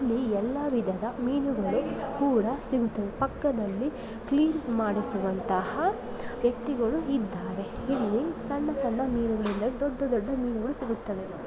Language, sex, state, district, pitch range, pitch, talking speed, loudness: Kannada, female, Karnataka, Belgaum, 215-270 Hz, 240 Hz, 100 wpm, -29 LUFS